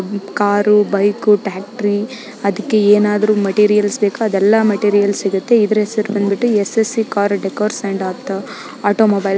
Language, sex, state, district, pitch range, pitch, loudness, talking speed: Kannada, female, Karnataka, Raichur, 200-215 Hz, 205 Hz, -15 LUFS, 115 wpm